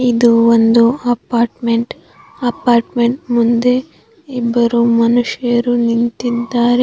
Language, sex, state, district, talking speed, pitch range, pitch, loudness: Kannada, female, Karnataka, Bangalore, 70 wpm, 235-245 Hz, 240 Hz, -14 LUFS